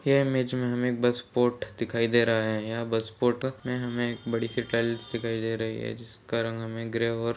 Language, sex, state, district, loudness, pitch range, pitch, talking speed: Hindi, male, Chhattisgarh, Balrampur, -28 LUFS, 115-120 Hz, 115 Hz, 235 wpm